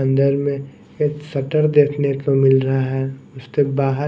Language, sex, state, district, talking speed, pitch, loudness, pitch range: Hindi, male, Odisha, Nuapada, 160 wpm, 140 Hz, -19 LUFS, 135-145 Hz